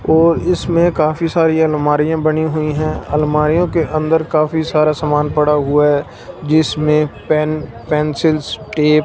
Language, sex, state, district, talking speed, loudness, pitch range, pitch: Hindi, male, Punjab, Fazilka, 145 wpm, -15 LUFS, 150-160 Hz, 155 Hz